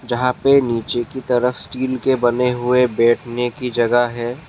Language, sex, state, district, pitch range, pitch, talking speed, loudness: Hindi, male, Assam, Kamrup Metropolitan, 120-130 Hz, 125 Hz, 175 wpm, -18 LUFS